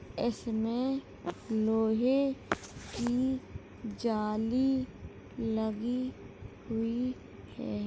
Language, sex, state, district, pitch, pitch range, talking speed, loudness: Hindi, female, Uttar Pradesh, Jalaun, 235 Hz, 220-255 Hz, 55 wpm, -33 LUFS